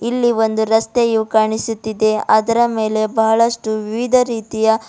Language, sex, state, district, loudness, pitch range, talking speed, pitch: Kannada, female, Karnataka, Bidar, -16 LUFS, 220-230 Hz, 110 wpm, 220 Hz